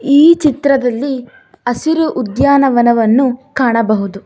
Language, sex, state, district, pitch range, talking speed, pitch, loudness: Kannada, female, Karnataka, Bangalore, 240-280 Hz, 70 wpm, 260 Hz, -13 LUFS